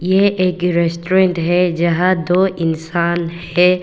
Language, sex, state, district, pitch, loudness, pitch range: Hindi, female, Arunachal Pradesh, Papum Pare, 175 Hz, -16 LUFS, 170-185 Hz